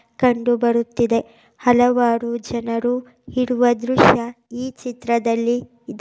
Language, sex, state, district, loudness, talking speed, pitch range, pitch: Kannada, female, Karnataka, Raichur, -19 LUFS, 90 wpm, 235-245 Hz, 240 Hz